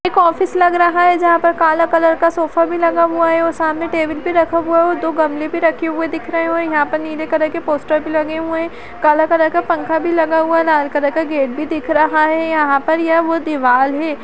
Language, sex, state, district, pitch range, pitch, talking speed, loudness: Hindi, female, Uttarakhand, Tehri Garhwal, 310-335 Hz, 325 Hz, 275 wpm, -15 LUFS